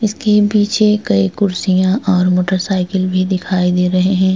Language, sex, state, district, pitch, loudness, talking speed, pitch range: Hindi, female, Bihar, Vaishali, 190 Hz, -14 LUFS, 165 wpm, 185-205 Hz